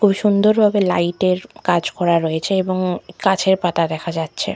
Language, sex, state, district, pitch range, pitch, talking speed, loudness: Bengali, female, West Bengal, Malda, 170-195 Hz, 185 Hz, 185 wpm, -18 LUFS